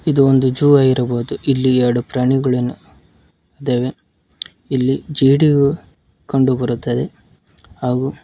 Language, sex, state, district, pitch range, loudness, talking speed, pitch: Kannada, male, Karnataka, Koppal, 125-135 Hz, -16 LUFS, 95 wpm, 130 Hz